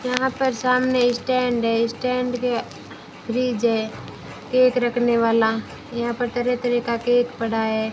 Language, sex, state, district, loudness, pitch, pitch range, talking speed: Hindi, female, Rajasthan, Bikaner, -21 LUFS, 245 Hz, 230-250 Hz, 150 wpm